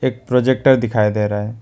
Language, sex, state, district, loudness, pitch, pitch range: Hindi, male, West Bengal, Alipurduar, -16 LUFS, 120 Hz, 105-130 Hz